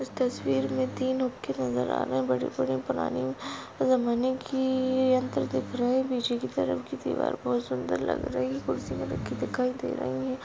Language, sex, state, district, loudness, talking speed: Hindi, female, Chhattisgarh, Balrampur, -29 LUFS, 200 wpm